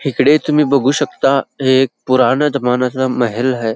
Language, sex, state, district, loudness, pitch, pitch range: Marathi, male, Karnataka, Belgaum, -14 LUFS, 130 Hz, 125-140 Hz